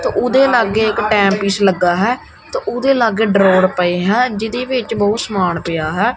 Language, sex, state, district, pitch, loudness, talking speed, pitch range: Punjabi, male, Punjab, Kapurthala, 215 Hz, -15 LUFS, 185 wpm, 190-245 Hz